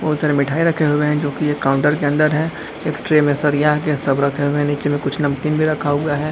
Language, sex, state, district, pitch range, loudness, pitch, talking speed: Hindi, male, Jharkhand, Jamtara, 145-150 Hz, -18 LUFS, 150 Hz, 275 wpm